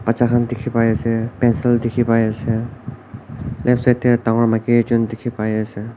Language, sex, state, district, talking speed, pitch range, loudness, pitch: Nagamese, male, Nagaland, Kohima, 180 wpm, 115-120 Hz, -18 LUFS, 115 Hz